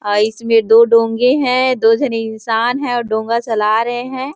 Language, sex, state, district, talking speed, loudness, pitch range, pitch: Hindi, female, Chhattisgarh, Rajnandgaon, 205 wpm, -14 LUFS, 225-250 Hz, 230 Hz